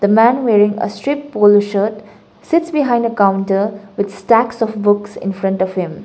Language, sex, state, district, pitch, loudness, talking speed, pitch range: English, female, Sikkim, Gangtok, 205 Hz, -15 LUFS, 190 wpm, 200-230 Hz